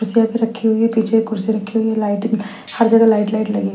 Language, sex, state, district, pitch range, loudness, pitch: Hindi, female, Maharashtra, Mumbai Suburban, 215-225 Hz, -17 LUFS, 220 Hz